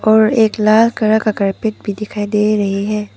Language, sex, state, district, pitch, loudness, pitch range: Hindi, female, Arunachal Pradesh, Papum Pare, 215 Hz, -15 LUFS, 210-220 Hz